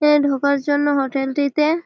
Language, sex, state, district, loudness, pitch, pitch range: Bengali, female, West Bengal, Malda, -19 LUFS, 285 Hz, 280-295 Hz